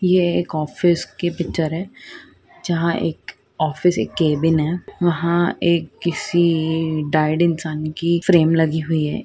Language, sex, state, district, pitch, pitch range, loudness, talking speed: Hindi, female, Andhra Pradesh, Guntur, 170 Hz, 155-175 Hz, -19 LUFS, 145 wpm